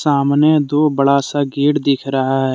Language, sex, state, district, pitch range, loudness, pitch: Hindi, male, Jharkhand, Deoghar, 140-145 Hz, -15 LUFS, 140 Hz